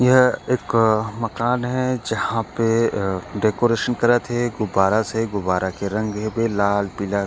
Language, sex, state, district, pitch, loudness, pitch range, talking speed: Chhattisgarhi, male, Chhattisgarh, Korba, 115 Hz, -21 LUFS, 100-120 Hz, 140 wpm